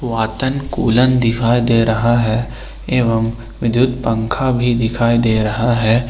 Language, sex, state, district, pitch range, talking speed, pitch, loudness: Hindi, male, Jharkhand, Ranchi, 115-120 Hz, 135 wpm, 115 Hz, -15 LUFS